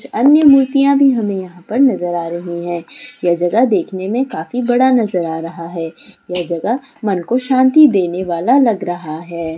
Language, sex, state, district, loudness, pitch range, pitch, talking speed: Hindi, female, Bihar, Purnia, -15 LUFS, 175-260 Hz, 200 Hz, 190 wpm